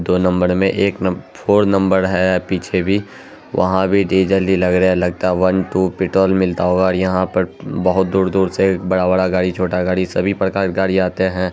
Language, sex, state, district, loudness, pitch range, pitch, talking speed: Hindi, male, Bihar, Araria, -16 LUFS, 90-95 Hz, 95 Hz, 210 wpm